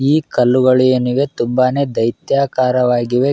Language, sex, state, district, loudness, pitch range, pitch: Kannada, male, Karnataka, Raichur, -15 LUFS, 125-135 Hz, 130 Hz